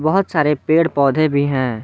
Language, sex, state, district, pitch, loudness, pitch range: Hindi, male, Jharkhand, Garhwa, 150 Hz, -16 LUFS, 140-155 Hz